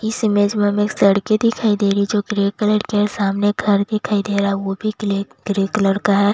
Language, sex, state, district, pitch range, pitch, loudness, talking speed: Hindi, female, Bihar, Katihar, 200-210 Hz, 205 Hz, -18 LUFS, 255 wpm